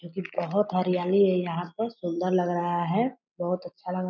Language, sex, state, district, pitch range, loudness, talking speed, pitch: Hindi, female, Bihar, Purnia, 175-195 Hz, -27 LUFS, 220 wpm, 180 Hz